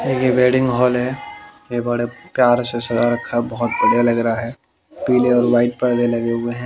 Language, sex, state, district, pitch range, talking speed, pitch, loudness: Hindi, male, Bihar, West Champaran, 120-125 Hz, 205 wpm, 120 Hz, -18 LUFS